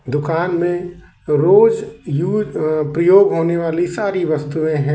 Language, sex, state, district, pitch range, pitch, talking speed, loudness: Hindi, male, Uttar Pradesh, Lalitpur, 155-195 Hz, 170 Hz, 120 wpm, -16 LUFS